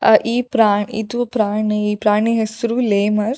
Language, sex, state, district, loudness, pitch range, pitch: Kannada, female, Karnataka, Shimoga, -17 LUFS, 210-235 Hz, 220 Hz